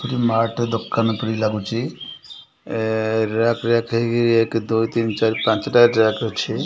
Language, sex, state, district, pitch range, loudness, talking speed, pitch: Odia, male, Odisha, Khordha, 110-115 Hz, -20 LUFS, 145 wpm, 115 Hz